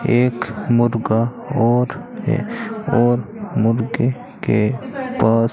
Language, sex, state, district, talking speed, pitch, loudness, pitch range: Hindi, male, Rajasthan, Bikaner, 85 wpm, 120 Hz, -19 LUFS, 115-160 Hz